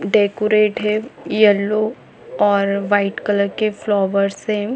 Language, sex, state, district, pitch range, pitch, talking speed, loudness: Hindi, female, Chhattisgarh, Bilaspur, 200-215 Hz, 210 Hz, 115 wpm, -18 LUFS